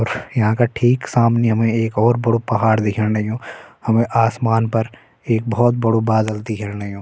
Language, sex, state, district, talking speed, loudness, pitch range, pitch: Hindi, male, Uttarakhand, Uttarkashi, 180 wpm, -18 LUFS, 110-115 Hz, 115 Hz